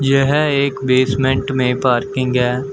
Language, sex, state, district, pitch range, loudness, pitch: Hindi, male, Uttar Pradesh, Shamli, 130-135 Hz, -16 LUFS, 130 Hz